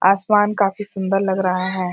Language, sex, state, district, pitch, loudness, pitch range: Hindi, female, Uttarakhand, Uttarkashi, 195 Hz, -19 LUFS, 190-205 Hz